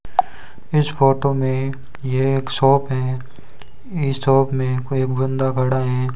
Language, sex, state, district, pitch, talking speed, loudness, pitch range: Hindi, male, Rajasthan, Bikaner, 135 Hz, 145 wpm, -19 LUFS, 130-135 Hz